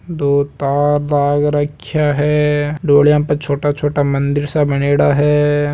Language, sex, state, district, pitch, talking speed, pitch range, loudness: Marwari, male, Rajasthan, Nagaur, 145 Hz, 135 wpm, 145-150 Hz, -15 LUFS